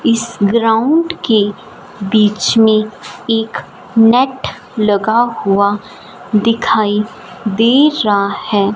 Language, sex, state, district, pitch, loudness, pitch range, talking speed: Hindi, female, Punjab, Fazilka, 220 Hz, -13 LUFS, 205-235 Hz, 90 wpm